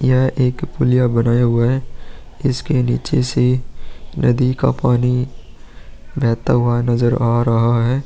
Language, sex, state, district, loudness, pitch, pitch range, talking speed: Hindi, male, Bihar, Vaishali, -17 LUFS, 125 Hz, 120-130 Hz, 135 wpm